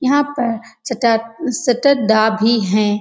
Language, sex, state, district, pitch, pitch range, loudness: Hindi, female, Uttar Pradesh, Etah, 235 Hz, 220-265 Hz, -16 LUFS